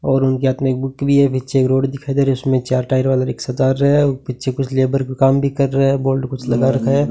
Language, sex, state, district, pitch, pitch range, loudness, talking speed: Hindi, male, Rajasthan, Bikaner, 135 Hz, 130-135 Hz, -17 LUFS, 305 wpm